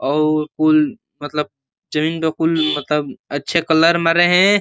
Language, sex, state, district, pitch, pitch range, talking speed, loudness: Hindi, male, Uttar Pradesh, Ghazipur, 160 Hz, 150-170 Hz, 105 wpm, -17 LUFS